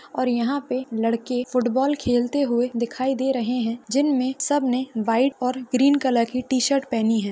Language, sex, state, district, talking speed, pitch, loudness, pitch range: Hindi, female, Maharashtra, Solapur, 180 wpm, 255 Hz, -22 LUFS, 240-265 Hz